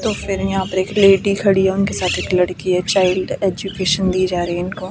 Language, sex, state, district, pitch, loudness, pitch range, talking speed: Hindi, female, Himachal Pradesh, Shimla, 190 Hz, -17 LUFS, 185-195 Hz, 245 wpm